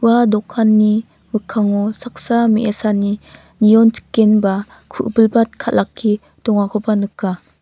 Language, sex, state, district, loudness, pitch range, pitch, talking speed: Garo, female, Meghalaya, North Garo Hills, -16 LUFS, 205-225 Hz, 215 Hz, 80 wpm